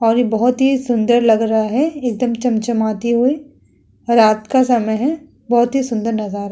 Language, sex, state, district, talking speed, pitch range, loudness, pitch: Hindi, female, Uttar Pradesh, Muzaffarnagar, 195 wpm, 225-255 Hz, -16 LUFS, 235 Hz